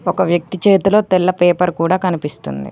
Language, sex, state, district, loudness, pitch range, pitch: Telugu, female, Telangana, Mahabubabad, -15 LUFS, 170-185 Hz, 180 Hz